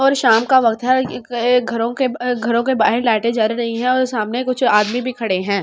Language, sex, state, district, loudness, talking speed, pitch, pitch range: Hindi, female, Delhi, New Delhi, -17 LUFS, 255 wpm, 235 Hz, 225-255 Hz